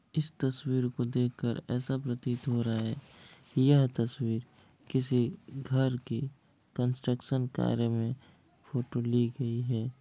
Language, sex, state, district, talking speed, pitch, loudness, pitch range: Hindi, male, Bihar, Kishanganj, 125 wpm, 125 Hz, -32 LUFS, 120-135 Hz